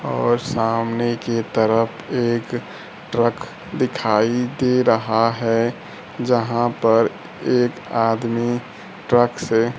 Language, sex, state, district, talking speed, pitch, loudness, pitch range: Hindi, male, Bihar, Kaimur, 100 wpm, 120 Hz, -20 LUFS, 115-120 Hz